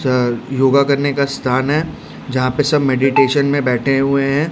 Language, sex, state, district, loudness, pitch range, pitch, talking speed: Hindi, male, Odisha, Khordha, -16 LUFS, 130-140 Hz, 140 Hz, 170 wpm